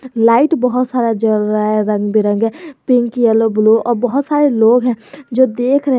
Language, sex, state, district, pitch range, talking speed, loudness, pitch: Hindi, male, Jharkhand, Garhwa, 220-260 Hz, 200 wpm, -14 LUFS, 240 Hz